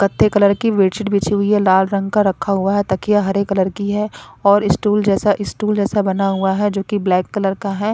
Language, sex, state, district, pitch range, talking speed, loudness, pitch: Hindi, female, Punjab, Kapurthala, 195-205 Hz, 240 wpm, -17 LUFS, 200 Hz